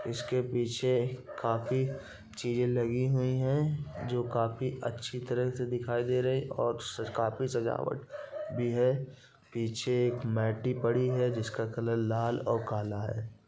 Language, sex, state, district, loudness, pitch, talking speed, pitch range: Hindi, male, Bihar, Gopalganj, -32 LUFS, 120 Hz, 140 wpm, 115-130 Hz